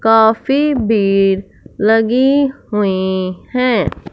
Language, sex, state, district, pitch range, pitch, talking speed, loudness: Hindi, female, Punjab, Fazilka, 195-250 Hz, 220 Hz, 75 wpm, -14 LUFS